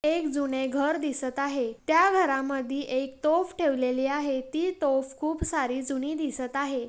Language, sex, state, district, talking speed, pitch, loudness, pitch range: Marathi, female, Maharashtra, Pune, 150 wpm, 280 Hz, -27 LUFS, 265-305 Hz